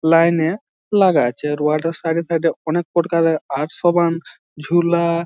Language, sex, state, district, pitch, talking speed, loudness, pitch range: Bengali, male, West Bengal, Jhargram, 165 Hz, 160 wpm, -18 LUFS, 160-170 Hz